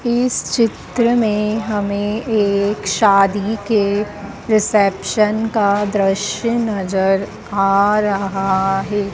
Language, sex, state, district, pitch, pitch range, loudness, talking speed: Hindi, female, Madhya Pradesh, Dhar, 205 Hz, 200-220 Hz, -17 LUFS, 90 wpm